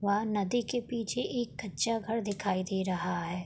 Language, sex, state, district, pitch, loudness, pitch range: Hindi, female, Uttar Pradesh, Budaun, 205 Hz, -32 LUFS, 190-230 Hz